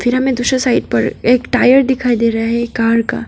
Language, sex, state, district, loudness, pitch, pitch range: Hindi, female, Arunachal Pradesh, Papum Pare, -14 LUFS, 245 Hz, 230-255 Hz